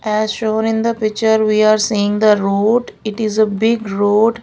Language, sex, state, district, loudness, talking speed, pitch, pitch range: English, female, Maharashtra, Gondia, -15 LUFS, 205 wpm, 215 Hz, 210-220 Hz